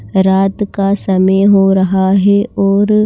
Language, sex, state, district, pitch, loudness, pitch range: Hindi, female, Himachal Pradesh, Shimla, 195 Hz, -12 LUFS, 190-200 Hz